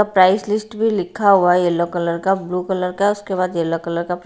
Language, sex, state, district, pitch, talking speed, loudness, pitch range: Hindi, female, Haryana, Rohtak, 185 Hz, 240 wpm, -18 LUFS, 175-200 Hz